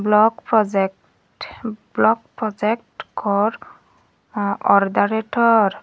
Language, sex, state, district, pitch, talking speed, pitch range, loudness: Chakma, female, Tripura, Dhalai, 215 Hz, 60 wpm, 205-225 Hz, -19 LUFS